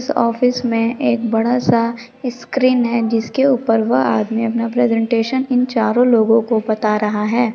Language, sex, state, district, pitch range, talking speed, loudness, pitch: Hindi, female, Chhattisgarh, Sukma, 225-250 Hz, 145 wpm, -16 LUFS, 230 Hz